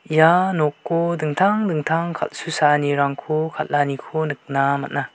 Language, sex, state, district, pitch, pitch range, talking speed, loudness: Garo, male, Meghalaya, West Garo Hills, 155 Hz, 145-170 Hz, 95 wpm, -20 LUFS